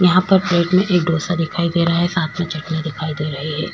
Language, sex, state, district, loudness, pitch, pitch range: Hindi, female, Maharashtra, Chandrapur, -18 LUFS, 170 Hz, 160-180 Hz